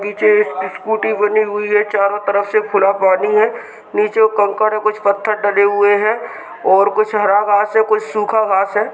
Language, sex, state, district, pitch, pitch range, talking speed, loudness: Hindi, male, Uttar Pradesh, Hamirpur, 210 Hz, 200-215 Hz, 195 wpm, -15 LUFS